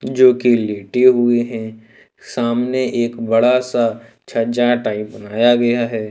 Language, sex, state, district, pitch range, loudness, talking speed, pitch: Hindi, male, Jharkhand, Ranchi, 115-120 Hz, -16 LUFS, 135 wpm, 120 Hz